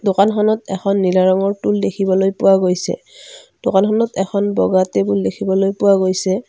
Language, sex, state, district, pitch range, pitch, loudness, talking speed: Assamese, female, Assam, Kamrup Metropolitan, 185-205 Hz, 195 Hz, -16 LUFS, 140 wpm